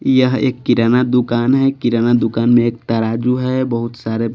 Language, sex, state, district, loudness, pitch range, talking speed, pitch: Hindi, male, Bihar, Kaimur, -15 LUFS, 115-130 Hz, 180 wpm, 120 Hz